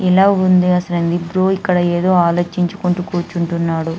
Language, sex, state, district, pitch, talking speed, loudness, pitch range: Telugu, female, Andhra Pradesh, Anantapur, 180 Hz, 135 wpm, -16 LUFS, 170-185 Hz